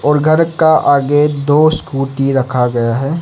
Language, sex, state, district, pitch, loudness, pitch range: Hindi, male, Arunachal Pradesh, Lower Dibang Valley, 145 Hz, -13 LUFS, 135-155 Hz